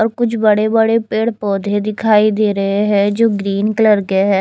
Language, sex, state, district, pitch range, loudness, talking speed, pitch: Hindi, female, Chandigarh, Chandigarh, 200-220 Hz, -14 LUFS, 205 wpm, 210 Hz